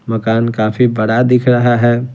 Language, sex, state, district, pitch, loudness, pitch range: Hindi, male, Bihar, Patna, 120 Hz, -13 LUFS, 115-125 Hz